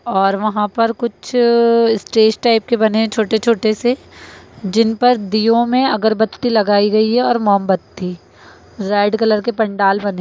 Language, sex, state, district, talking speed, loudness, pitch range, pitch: Hindi, female, Uttar Pradesh, Etah, 160 wpm, -15 LUFS, 205-235 Hz, 220 Hz